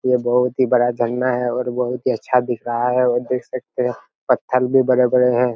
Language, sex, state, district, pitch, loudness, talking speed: Hindi, male, Chhattisgarh, Raigarh, 125 Hz, -19 LUFS, 240 wpm